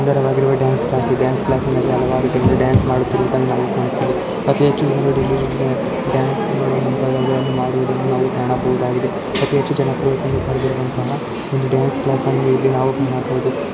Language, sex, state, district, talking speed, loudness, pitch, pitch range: Kannada, male, Karnataka, Shimoga, 120 wpm, -18 LUFS, 130 Hz, 130-135 Hz